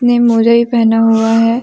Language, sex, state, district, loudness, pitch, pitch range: Hindi, female, Jharkhand, Deoghar, -11 LUFS, 230 Hz, 225-235 Hz